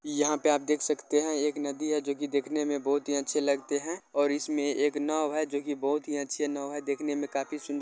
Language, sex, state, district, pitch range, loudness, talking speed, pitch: Hindi, male, Bihar, Jamui, 145-150 Hz, -30 LUFS, 270 wpm, 145 Hz